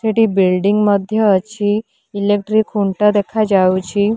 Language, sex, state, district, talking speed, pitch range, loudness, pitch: Odia, female, Odisha, Nuapada, 100 wpm, 195-215 Hz, -15 LUFS, 205 Hz